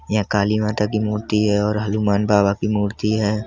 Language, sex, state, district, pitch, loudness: Hindi, male, Uttar Pradesh, Budaun, 105 Hz, -19 LUFS